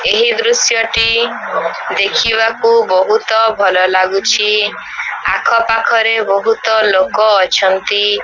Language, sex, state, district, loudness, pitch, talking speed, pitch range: Odia, female, Odisha, Sambalpur, -12 LUFS, 220 Hz, 85 wpm, 195-225 Hz